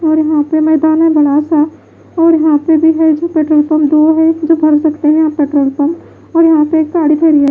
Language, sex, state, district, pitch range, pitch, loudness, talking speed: Hindi, female, Bihar, West Champaran, 300-320 Hz, 315 Hz, -10 LUFS, 245 wpm